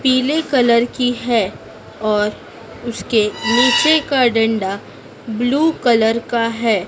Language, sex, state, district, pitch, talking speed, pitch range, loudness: Hindi, female, Madhya Pradesh, Dhar, 235 Hz, 115 wpm, 220-255 Hz, -16 LUFS